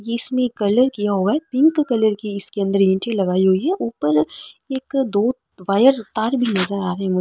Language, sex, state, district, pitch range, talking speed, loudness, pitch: Marwari, female, Rajasthan, Nagaur, 195-250 Hz, 200 wpm, -19 LUFS, 210 Hz